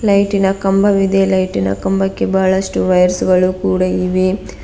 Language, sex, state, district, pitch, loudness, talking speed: Kannada, female, Karnataka, Bidar, 185 Hz, -14 LUFS, 115 wpm